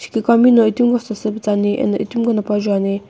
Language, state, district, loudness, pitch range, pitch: Sumi, Nagaland, Kohima, -16 LUFS, 205-235 Hz, 215 Hz